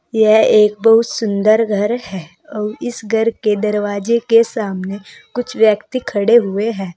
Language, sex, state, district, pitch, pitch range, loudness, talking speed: Hindi, female, Uttar Pradesh, Saharanpur, 215 Hz, 205-230 Hz, -15 LUFS, 155 wpm